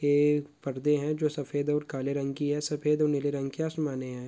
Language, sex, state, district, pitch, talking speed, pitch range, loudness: Hindi, female, Bihar, Purnia, 145 Hz, 250 wpm, 140-150 Hz, -29 LUFS